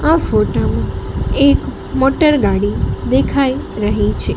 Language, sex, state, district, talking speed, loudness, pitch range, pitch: Gujarati, female, Gujarat, Gandhinagar, 110 wpm, -15 LUFS, 260-300 Hz, 275 Hz